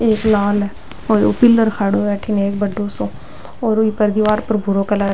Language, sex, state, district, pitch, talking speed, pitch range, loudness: Rajasthani, female, Rajasthan, Nagaur, 210 Hz, 185 wpm, 200-220 Hz, -17 LUFS